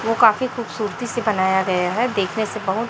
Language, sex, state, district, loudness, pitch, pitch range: Hindi, female, Chhattisgarh, Raipur, -20 LUFS, 220 Hz, 190-235 Hz